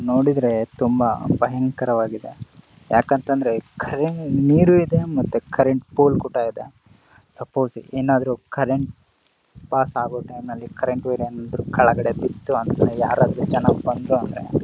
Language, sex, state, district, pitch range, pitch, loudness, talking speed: Kannada, male, Karnataka, Bellary, 120-135 Hz, 130 Hz, -21 LUFS, 115 wpm